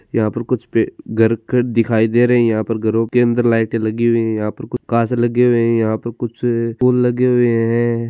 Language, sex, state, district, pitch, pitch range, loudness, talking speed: Marwari, male, Rajasthan, Churu, 115 Hz, 115-120 Hz, -16 LUFS, 230 wpm